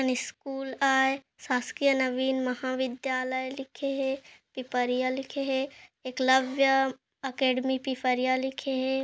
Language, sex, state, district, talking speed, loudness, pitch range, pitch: Hindi, female, Chhattisgarh, Kabirdham, 105 wpm, -28 LUFS, 255-270 Hz, 265 Hz